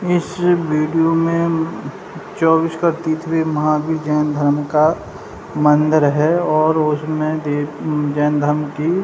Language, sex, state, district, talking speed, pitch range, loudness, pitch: Hindi, male, Bihar, Saran, 125 wpm, 150-165 Hz, -17 LUFS, 155 Hz